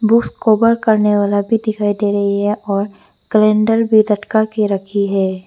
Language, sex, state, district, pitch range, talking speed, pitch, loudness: Hindi, female, Arunachal Pradesh, Lower Dibang Valley, 200-220 Hz, 175 wpm, 210 Hz, -15 LUFS